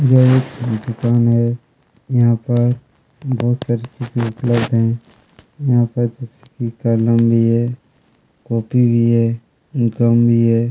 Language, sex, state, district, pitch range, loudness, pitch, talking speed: Hindi, male, Chhattisgarh, Kabirdham, 115-125 Hz, -17 LUFS, 120 Hz, 130 wpm